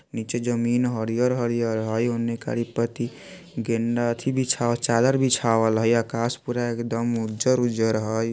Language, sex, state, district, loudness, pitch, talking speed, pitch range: Bajjika, male, Bihar, Vaishali, -24 LUFS, 120 Hz, 160 wpm, 115-120 Hz